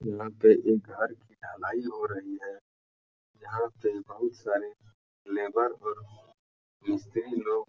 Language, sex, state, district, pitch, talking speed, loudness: Hindi, male, Uttar Pradesh, Etah, 115 Hz, 140 wpm, -29 LUFS